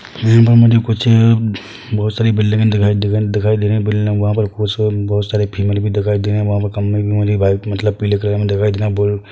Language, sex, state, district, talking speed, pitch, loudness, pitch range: Hindi, male, Chhattisgarh, Bilaspur, 250 wpm, 105 Hz, -15 LUFS, 105-110 Hz